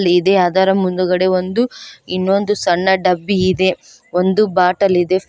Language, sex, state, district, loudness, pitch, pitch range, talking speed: Kannada, female, Karnataka, Koppal, -15 LUFS, 185 Hz, 180-195 Hz, 125 wpm